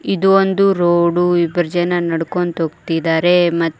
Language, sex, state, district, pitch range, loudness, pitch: Kannada, female, Karnataka, Koppal, 165-180 Hz, -15 LUFS, 175 Hz